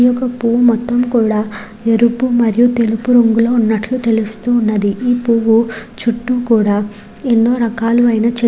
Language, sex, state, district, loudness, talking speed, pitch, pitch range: Telugu, female, Andhra Pradesh, Srikakulam, -14 LUFS, 140 wpm, 230 Hz, 220-240 Hz